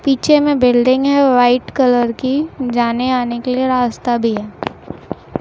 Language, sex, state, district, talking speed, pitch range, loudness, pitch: Hindi, female, Chhattisgarh, Raipur, 155 wpm, 240-265 Hz, -15 LUFS, 250 Hz